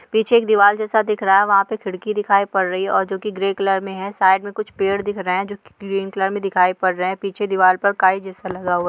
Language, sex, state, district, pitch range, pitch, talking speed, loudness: Hindi, female, Andhra Pradesh, Srikakulam, 190-205 Hz, 195 Hz, 305 wpm, -18 LUFS